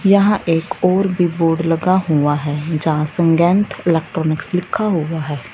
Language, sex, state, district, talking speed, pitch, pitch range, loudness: Hindi, female, Punjab, Fazilka, 150 wpm, 165 Hz, 155-185 Hz, -17 LUFS